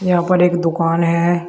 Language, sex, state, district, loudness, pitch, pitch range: Hindi, male, Uttar Pradesh, Shamli, -16 LUFS, 170 Hz, 170-180 Hz